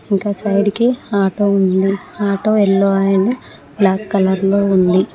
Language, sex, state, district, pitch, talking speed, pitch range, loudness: Telugu, female, Telangana, Mahabubabad, 200 Hz, 140 wpm, 195-205 Hz, -15 LUFS